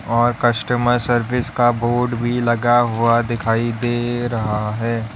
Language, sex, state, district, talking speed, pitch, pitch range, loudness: Hindi, male, Uttar Pradesh, Lalitpur, 140 wpm, 120 Hz, 115-120 Hz, -18 LUFS